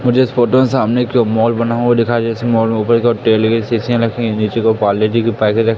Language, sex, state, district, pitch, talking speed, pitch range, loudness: Hindi, male, Madhya Pradesh, Katni, 115 Hz, 260 wpm, 110-120 Hz, -14 LUFS